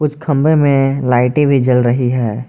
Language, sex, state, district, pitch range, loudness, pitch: Hindi, male, Jharkhand, Garhwa, 125-145 Hz, -13 LUFS, 135 Hz